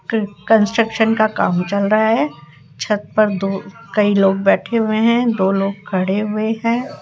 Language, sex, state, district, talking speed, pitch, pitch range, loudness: Hindi, female, Rajasthan, Jaipur, 160 wpm, 210 Hz, 195-225 Hz, -17 LUFS